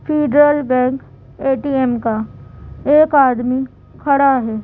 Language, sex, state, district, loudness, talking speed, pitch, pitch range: Hindi, female, Madhya Pradesh, Bhopal, -15 LUFS, 105 wpm, 270 Hz, 250-285 Hz